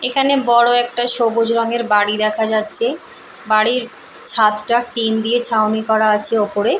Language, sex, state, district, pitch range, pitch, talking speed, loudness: Bengali, female, West Bengal, Purulia, 215-240 Hz, 230 Hz, 140 wpm, -15 LUFS